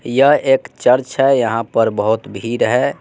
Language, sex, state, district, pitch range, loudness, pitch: Hindi, male, Bihar, West Champaran, 115-135 Hz, -15 LUFS, 125 Hz